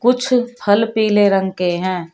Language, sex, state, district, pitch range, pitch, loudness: Hindi, female, Uttar Pradesh, Shamli, 185-245 Hz, 205 Hz, -16 LUFS